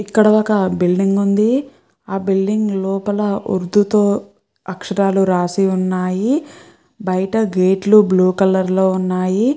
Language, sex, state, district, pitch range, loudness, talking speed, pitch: Telugu, female, Andhra Pradesh, Chittoor, 185-210 Hz, -16 LUFS, 120 wpm, 195 Hz